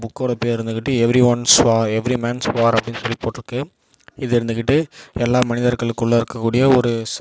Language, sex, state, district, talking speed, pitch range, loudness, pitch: Tamil, male, Tamil Nadu, Namakkal, 135 wpm, 115-125 Hz, -18 LUFS, 120 Hz